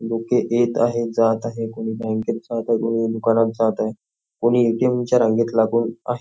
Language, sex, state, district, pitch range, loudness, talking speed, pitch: Marathi, male, Maharashtra, Nagpur, 115-120 Hz, -20 LUFS, 210 wpm, 115 Hz